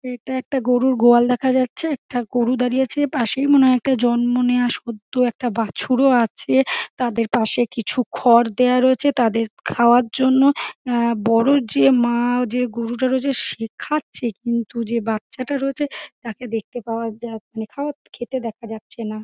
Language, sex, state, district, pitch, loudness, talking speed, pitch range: Bengali, female, West Bengal, Dakshin Dinajpur, 245 Hz, -19 LUFS, 160 wpm, 230-260 Hz